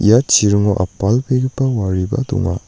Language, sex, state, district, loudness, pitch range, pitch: Garo, male, Meghalaya, North Garo Hills, -16 LUFS, 95-130 Hz, 110 Hz